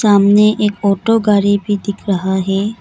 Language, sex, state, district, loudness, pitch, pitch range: Hindi, female, Arunachal Pradesh, Lower Dibang Valley, -14 LUFS, 205 Hz, 200-210 Hz